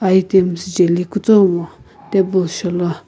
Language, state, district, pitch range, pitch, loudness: Sumi, Nagaland, Kohima, 175-190 Hz, 185 Hz, -16 LUFS